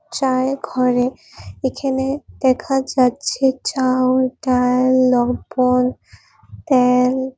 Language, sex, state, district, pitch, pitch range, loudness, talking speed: Bengali, female, West Bengal, Purulia, 255 Hz, 250-265 Hz, -18 LUFS, 80 wpm